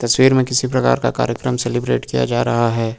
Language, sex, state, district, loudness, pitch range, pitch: Hindi, male, Uttar Pradesh, Lucknow, -17 LUFS, 115-125 Hz, 120 Hz